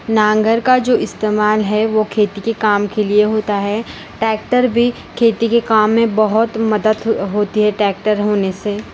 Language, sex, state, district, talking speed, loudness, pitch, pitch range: Hindi, female, Uttar Pradesh, Varanasi, 195 wpm, -15 LUFS, 215 Hz, 210-225 Hz